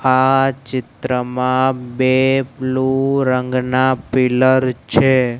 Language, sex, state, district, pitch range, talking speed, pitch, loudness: Gujarati, male, Gujarat, Gandhinagar, 125-130 Hz, 80 wpm, 130 Hz, -16 LUFS